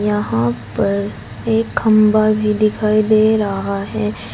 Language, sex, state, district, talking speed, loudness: Hindi, female, Uttar Pradesh, Saharanpur, 125 wpm, -16 LUFS